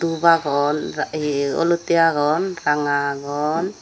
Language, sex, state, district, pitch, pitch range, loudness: Chakma, female, Tripura, Dhalai, 150 Hz, 145-165 Hz, -20 LUFS